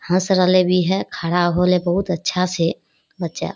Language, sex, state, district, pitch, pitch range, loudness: Hindi, female, Bihar, Kishanganj, 180 Hz, 175-185 Hz, -19 LUFS